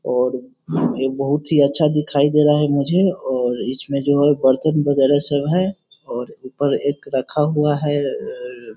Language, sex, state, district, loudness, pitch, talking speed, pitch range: Hindi, male, Bihar, Sitamarhi, -18 LUFS, 145 Hz, 180 wpm, 135-150 Hz